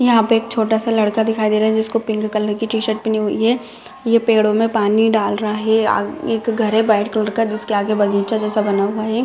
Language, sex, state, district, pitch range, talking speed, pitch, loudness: Hindi, female, Bihar, Madhepura, 215-225 Hz, 260 wpm, 220 Hz, -17 LUFS